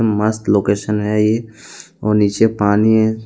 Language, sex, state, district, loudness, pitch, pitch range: Hindi, male, Jharkhand, Deoghar, -16 LUFS, 105 Hz, 105-110 Hz